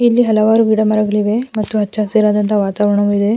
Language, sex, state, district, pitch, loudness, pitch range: Kannada, female, Karnataka, Mysore, 215 Hz, -14 LUFS, 210-220 Hz